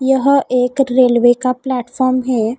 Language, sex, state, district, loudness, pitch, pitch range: Hindi, female, Odisha, Khordha, -14 LUFS, 255 Hz, 245-265 Hz